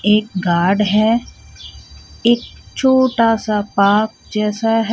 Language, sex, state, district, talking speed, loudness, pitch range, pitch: Hindi, female, Jharkhand, Ranchi, 95 wpm, -16 LUFS, 210-225 Hz, 215 Hz